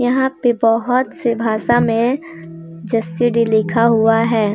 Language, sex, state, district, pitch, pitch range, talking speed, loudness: Hindi, female, Jharkhand, Deoghar, 230 Hz, 220-245 Hz, 130 wpm, -16 LUFS